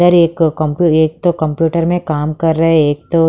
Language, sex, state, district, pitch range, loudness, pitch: Hindi, female, Haryana, Charkhi Dadri, 155-170 Hz, -14 LUFS, 160 Hz